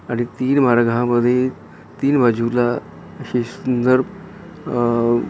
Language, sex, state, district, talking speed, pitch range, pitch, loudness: Marathi, male, Maharashtra, Gondia, 135 wpm, 120-130 Hz, 120 Hz, -18 LUFS